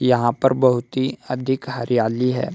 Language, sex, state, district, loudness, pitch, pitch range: Hindi, male, Uttar Pradesh, Hamirpur, -20 LUFS, 125 Hz, 120-130 Hz